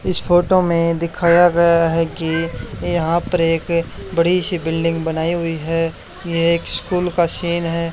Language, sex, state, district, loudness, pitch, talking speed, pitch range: Hindi, male, Haryana, Charkhi Dadri, -17 LUFS, 170 Hz, 165 wpm, 165-175 Hz